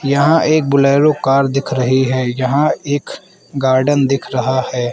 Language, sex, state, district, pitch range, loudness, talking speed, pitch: Hindi, male, Arunachal Pradesh, Lower Dibang Valley, 130-145 Hz, -14 LUFS, 160 wpm, 135 Hz